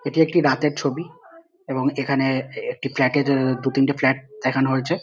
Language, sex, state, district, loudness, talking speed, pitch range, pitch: Bengali, male, West Bengal, North 24 Parganas, -21 LUFS, 180 wpm, 135-160 Hz, 140 Hz